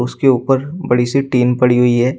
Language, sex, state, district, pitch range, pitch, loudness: Hindi, male, Uttar Pradesh, Shamli, 125-135 Hz, 125 Hz, -14 LUFS